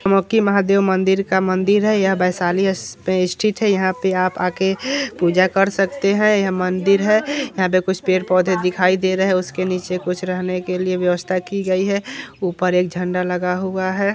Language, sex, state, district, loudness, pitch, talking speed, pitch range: Hindi, male, Bihar, Vaishali, -18 LUFS, 185 Hz, 200 wpm, 185-195 Hz